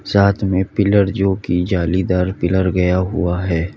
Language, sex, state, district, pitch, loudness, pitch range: Hindi, male, Uttar Pradesh, Lalitpur, 95 Hz, -17 LUFS, 90-100 Hz